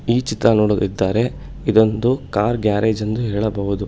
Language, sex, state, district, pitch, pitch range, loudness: Kannada, male, Karnataka, Bangalore, 110 Hz, 105-115 Hz, -18 LUFS